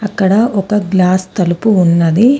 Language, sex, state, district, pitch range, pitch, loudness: Telugu, female, Telangana, Komaram Bheem, 180-210 Hz, 195 Hz, -12 LUFS